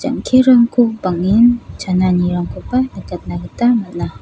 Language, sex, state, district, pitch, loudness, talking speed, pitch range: Garo, female, Meghalaya, South Garo Hills, 235 Hz, -15 LUFS, 85 wpm, 185-250 Hz